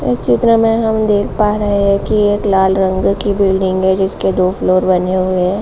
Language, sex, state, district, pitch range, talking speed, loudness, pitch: Hindi, female, Uttar Pradesh, Jalaun, 185-205 Hz, 215 wpm, -13 LUFS, 195 Hz